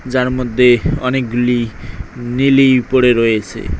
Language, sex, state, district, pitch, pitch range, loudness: Bengali, male, West Bengal, Cooch Behar, 125 Hz, 115-130 Hz, -14 LUFS